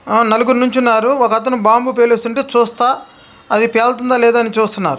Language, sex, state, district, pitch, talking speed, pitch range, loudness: Telugu, male, Andhra Pradesh, Krishna, 235 Hz, 145 wpm, 225-250 Hz, -13 LUFS